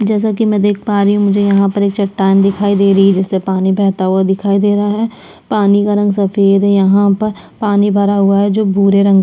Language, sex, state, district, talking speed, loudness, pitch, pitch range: Hindi, female, Chhattisgarh, Sukma, 255 wpm, -12 LUFS, 200 Hz, 195-205 Hz